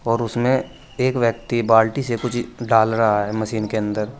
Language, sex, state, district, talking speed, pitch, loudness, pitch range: Hindi, male, Uttar Pradesh, Saharanpur, 185 wpm, 115 Hz, -20 LUFS, 110-120 Hz